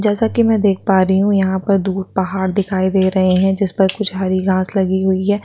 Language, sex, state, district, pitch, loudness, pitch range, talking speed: Hindi, female, Chhattisgarh, Sukma, 190 Hz, -16 LUFS, 190-200 Hz, 240 wpm